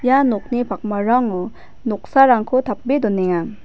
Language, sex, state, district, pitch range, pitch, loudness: Garo, female, Meghalaya, West Garo Hills, 205-255 Hz, 230 Hz, -18 LUFS